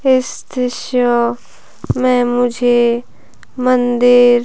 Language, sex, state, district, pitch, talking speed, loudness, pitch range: Hindi, female, Himachal Pradesh, Shimla, 245 Hz, 80 wpm, -14 LUFS, 240-250 Hz